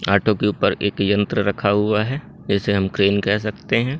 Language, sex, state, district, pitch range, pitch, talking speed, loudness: Hindi, male, Madhya Pradesh, Katni, 100-105 Hz, 100 Hz, 210 wpm, -20 LUFS